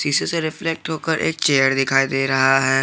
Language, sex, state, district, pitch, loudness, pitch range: Hindi, male, Jharkhand, Garhwa, 135 Hz, -19 LUFS, 135-160 Hz